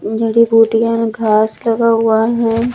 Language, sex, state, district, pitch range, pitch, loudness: Hindi, female, Chandigarh, Chandigarh, 225-230 Hz, 225 Hz, -13 LUFS